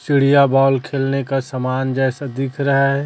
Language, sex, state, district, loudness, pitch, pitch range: Hindi, female, Chhattisgarh, Raipur, -17 LUFS, 135 Hz, 135-140 Hz